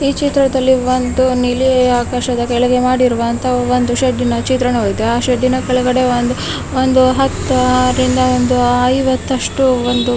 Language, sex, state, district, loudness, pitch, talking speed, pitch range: Kannada, female, Karnataka, Bellary, -14 LUFS, 250 Hz, 105 wpm, 245-255 Hz